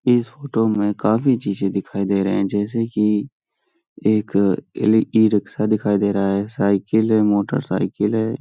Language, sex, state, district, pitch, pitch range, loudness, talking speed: Hindi, male, Uttar Pradesh, Hamirpur, 105 Hz, 100-110 Hz, -19 LUFS, 165 wpm